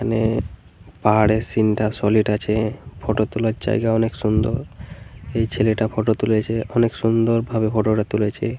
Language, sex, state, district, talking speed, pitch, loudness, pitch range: Bengali, male, Jharkhand, Jamtara, 155 wpm, 110 Hz, -20 LUFS, 110-115 Hz